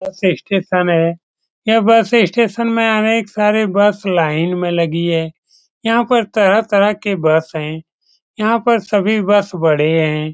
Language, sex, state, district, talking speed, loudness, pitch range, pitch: Hindi, male, Bihar, Saran, 150 wpm, -15 LUFS, 170-225 Hz, 200 Hz